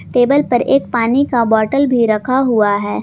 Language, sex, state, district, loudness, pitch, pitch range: Hindi, female, Jharkhand, Garhwa, -14 LUFS, 245 Hz, 220-270 Hz